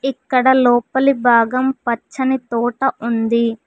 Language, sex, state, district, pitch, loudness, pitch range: Telugu, female, Telangana, Mahabubabad, 250 Hz, -16 LUFS, 235-265 Hz